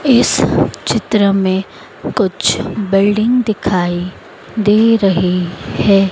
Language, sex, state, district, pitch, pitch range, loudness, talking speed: Hindi, female, Madhya Pradesh, Dhar, 200 Hz, 185-215 Hz, -14 LUFS, 90 wpm